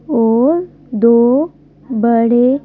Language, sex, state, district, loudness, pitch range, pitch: Hindi, female, Madhya Pradesh, Bhopal, -13 LUFS, 235-275 Hz, 240 Hz